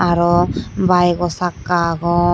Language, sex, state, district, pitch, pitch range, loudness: Chakma, male, Tripura, Dhalai, 175 Hz, 170-175 Hz, -16 LUFS